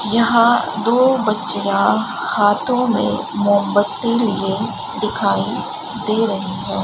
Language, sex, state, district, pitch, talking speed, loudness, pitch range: Hindi, male, Rajasthan, Bikaner, 220 Hz, 95 wpm, -17 LUFS, 205-235 Hz